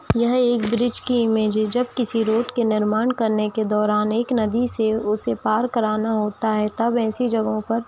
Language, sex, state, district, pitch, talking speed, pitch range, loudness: Hindi, female, Jharkhand, Jamtara, 220 Hz, 205 wpm, 215-240 Hz, -21 LUFS